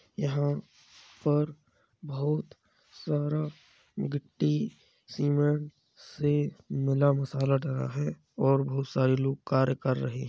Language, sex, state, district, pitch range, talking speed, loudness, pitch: Hindi, male, Uttar Pradesh, Jalaun, 130-145 Hz, 110 wpm, -29 LUFS, 140 Hz